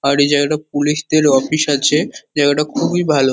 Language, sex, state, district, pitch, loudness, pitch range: Bengali, male, West Bengal, Kolkata, 145 Hz, -15 LUFS, 145-150 Hz